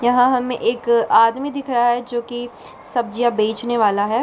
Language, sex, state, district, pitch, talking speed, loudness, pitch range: Hindi, female, Bihar, Bhagalpur, 240 Hz, 170 wpm, -18 LUFS, 230-245 Hz